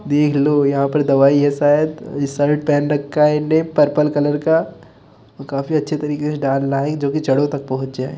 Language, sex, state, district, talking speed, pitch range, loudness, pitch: Hindi, male, Uttar Pradesh, Muzaffarnagar, 220 wpm, 140-150 Hz, -17 LUFS, 145 Hz